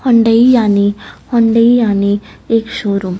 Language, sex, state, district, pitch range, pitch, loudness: Hindi, female, Chhattisgarh, Raipur, 205-235 Hz, 225 Hz, -12 LUFS